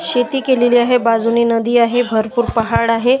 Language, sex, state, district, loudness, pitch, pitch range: Marathi, male, Maharashtra, Washim, -14 LUFS, 240 Hz, 230-245 Hz